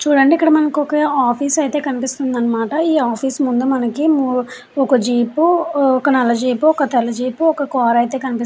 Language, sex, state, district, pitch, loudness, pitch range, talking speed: Telugu, female, Andhra Pradesh, Chittoor, 270 Hz, -16 LUFS, 245-295 Hz, 175 wpm